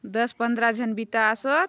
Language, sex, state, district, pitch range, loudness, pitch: Halbi, female, Chhattisgarh, Bastar, 225-240 Hz, -24 LUFS, 235 Hz